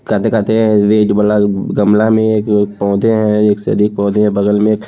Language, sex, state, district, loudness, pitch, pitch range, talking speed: Hindi, male, Haryana, Charkhi Dadri, -12 LUFS, 105 Hz, 105-110 Hz, 150 wpm